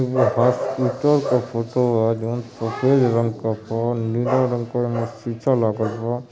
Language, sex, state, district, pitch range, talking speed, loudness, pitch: Bhojpuri, male, Uttar Pradesh, Ghazipur, 115-125 Hz, 160 wpm, -21 LUFS, 120 Hz